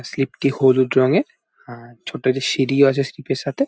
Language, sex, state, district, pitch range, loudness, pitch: Bengali, male, West Bengal, Jalpaiguri, 130-140 Hz, -18 LUFS, 135 Hz